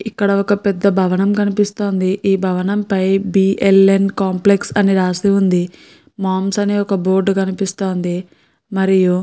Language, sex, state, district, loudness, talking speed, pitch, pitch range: Telugu, female, Andhra Pradesh, Guntur, -16 LUFS, 145 wpm, 195 Hz, 190-200 Hz